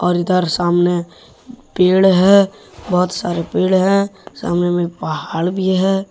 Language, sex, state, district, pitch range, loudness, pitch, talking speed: Hindi, male, Jharkhand, Deoghar, 175-195 Hz, -16 LUFS, 185 Hz, 135 wpm